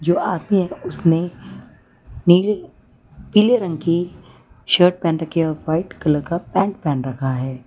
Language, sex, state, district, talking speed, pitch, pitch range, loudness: Hindi, female, Gujarat, Valsad, 140 wpm, 165 Hz, 135-180 Hz, -19 LUFS